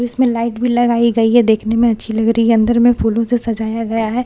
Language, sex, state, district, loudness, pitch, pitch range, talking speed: Hindi, female, Bihar, Katihar, -14 LUFS, 230 Hz, 225-240 Hz, 325 wpm